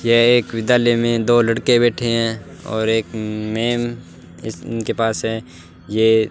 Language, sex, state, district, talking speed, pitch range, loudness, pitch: Hindi, male, Rajasthan, Bikaner, 150 wpm, 110-120 Hz, -18 LUFS, 115 Hz